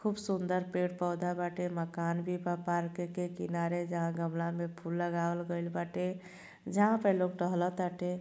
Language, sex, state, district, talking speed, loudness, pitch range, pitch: Bhojpuri, female, Uttar Pradesh, Gorakhpur, 170 wpm, -34 LUFS, 170-180 Hz, 175 Hz